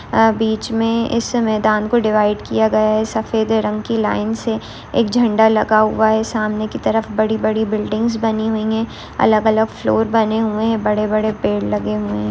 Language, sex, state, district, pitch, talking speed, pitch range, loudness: Hindi, female, West Bengal, Kolkata, 220 Hz, 185 wpm, 215-225 Hz, -17 LUFS